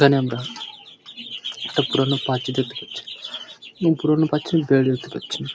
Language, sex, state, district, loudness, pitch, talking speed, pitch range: Bengali, male, West Bengal, Paschim Medinipur, -22 LUFS, 140 Hz, 140 wpm, 130-165 Hz